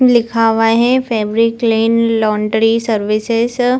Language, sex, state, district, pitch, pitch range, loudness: Hindi, female, Bihar, Purnia, 230 Hz, 220-235 Hz, -14 LUFS